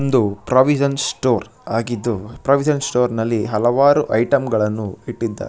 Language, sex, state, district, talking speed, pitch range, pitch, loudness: Kannada, male, Karnataka, Shimoga, 120 wpm, 110-135 Hz, 120 Hz, -18 LUFS